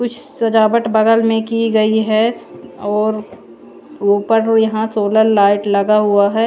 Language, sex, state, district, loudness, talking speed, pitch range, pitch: Hindi, female, Chandigarh, Chandigarh, -14 LUFS, 140 wpm, 210-225 Hz, 220 Hz